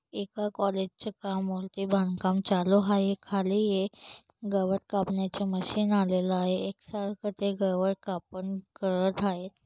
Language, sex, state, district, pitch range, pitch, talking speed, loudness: Marathi, female, Maharashtra, Solapur, 190-200 Hz, 195 Hz, 120 wpm, -29 LUFS